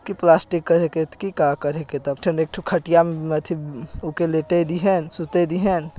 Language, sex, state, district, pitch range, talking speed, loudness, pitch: Hindi, male, Chhattisgarh, Jashpur, 155-175 Hz, 220 wpm, -20 LUFS, 170 Hz